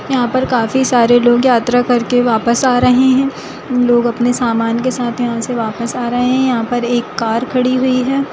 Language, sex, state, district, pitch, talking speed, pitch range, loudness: Hindi, female, Bihar, Sitamarhi, 245 Hz, 215 wpm, 235-255 Hz, -14 LUFS